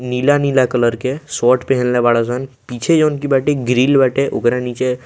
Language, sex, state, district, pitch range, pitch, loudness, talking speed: Bhojpuri, male, Bihar, Muzaffarpur, 125-140 Hz, 130 Hz, -15 LUFS, 180 wpm